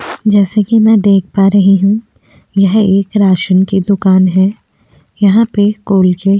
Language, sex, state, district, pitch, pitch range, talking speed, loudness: Hindi, female, Uttar Pradesh, Jyotiba Phule Nagar, 200 Hz, 195-210 Hz, 160 wpm, -11 LUFS